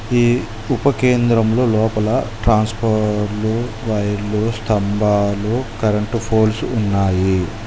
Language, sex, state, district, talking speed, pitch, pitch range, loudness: Telugu, male, Telangana, Mahabubabad, 70 wpm, 110 Hz, 105-115 Hz, -18 LUFS